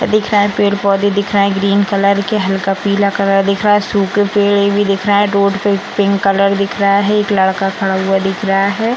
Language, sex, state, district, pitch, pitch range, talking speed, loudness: Hindi, female, Bihar, Samastipur, 200 Hz, 195-205 Hz, 255 wpm, -13 LUFS